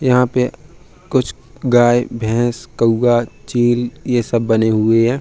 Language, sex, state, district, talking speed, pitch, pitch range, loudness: Hindi, male, Uttar Pradesh, Hamirpur, 140 wpm, 120 Hz, 115-125 Hz, -16 LUFS